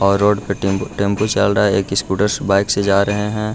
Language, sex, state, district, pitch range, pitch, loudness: Hindi, male, Bihar, Gaya, 100-105 Hz, 100 Hz, -17 LUFS